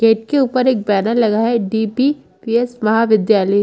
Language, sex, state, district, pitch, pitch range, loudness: Hindi, female, Chhattisgarh, Bilaspur, 225 Hz, 215-245 Hz, -16 LUFS